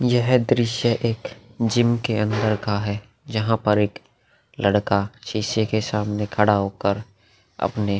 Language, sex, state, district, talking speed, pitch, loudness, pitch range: Hindi, male, Uttar Pradesh, Hamirpur, 140 wpm, 110 Hz, -22 LUFS, 105-120 Hz